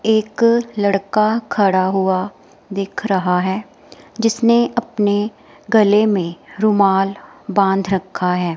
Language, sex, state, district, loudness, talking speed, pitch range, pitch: Hindi, female, Himachal Pradesh, Shimla, -17 LUFS, 105 wpm, 190-220 Hz, 200 Hz